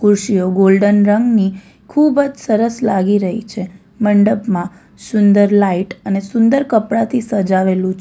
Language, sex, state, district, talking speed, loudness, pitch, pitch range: Gujarati, female, Gujarat, Valsad, 125 wpm, -14 LUFS, 205 Hz, 195-225 Hz